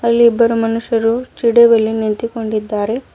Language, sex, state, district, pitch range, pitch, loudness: Kannada, female, Karnataka, Bidar, 220-235 Hz, 230 Hz, -14 LUFS